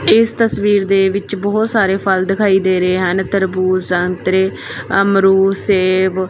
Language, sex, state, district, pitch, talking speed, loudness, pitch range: Punjabi, female, Punjab, Fazilka, 195 Hz, 145 wpm, -14 LUFS, 185-200 Hz